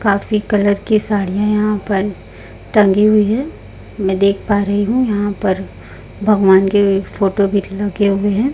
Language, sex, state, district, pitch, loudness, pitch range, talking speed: Hindi, female, Chhattisgarh, Raipur, 205 Hz, -15 LUFS, 195-210 Hz, 170 wpm